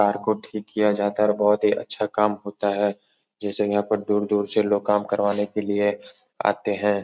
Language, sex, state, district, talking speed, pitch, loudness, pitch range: Hindi, male, Uttar Pradesh, Etah, 215 wpm, 105 Hz, -23 LUFS, 100-105 Hz